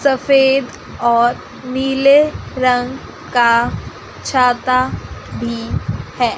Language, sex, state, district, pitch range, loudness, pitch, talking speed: Hindi, female, Chandigarh, Chandigarh, 235-265 Hz, -16 LUFS, 250 Hz, 75 wpm